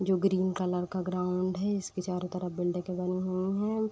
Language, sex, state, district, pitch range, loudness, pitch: Hindi, female, Uttar Pradesh, Deoria, 180-190 Hz, -31 LUFS, 185 Hz